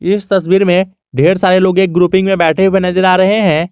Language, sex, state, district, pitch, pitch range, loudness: Hindi, male, Jharkhand, Garhwa, 190 Hz, 180-195 Hz, -11 LUFS